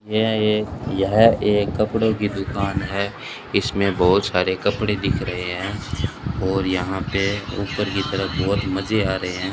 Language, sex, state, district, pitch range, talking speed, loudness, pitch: Hindi, male, Rajasthan, Bikaner, 95-105 Hz, 165 wpm, -21 LUFS, 100 Hz